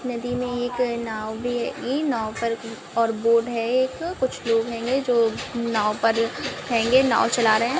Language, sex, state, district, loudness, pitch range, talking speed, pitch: Hindi, female, Andhra Pradesh, Guntur, -23 LUFS, 225-250 Hz, 175 wpm, 235 Hz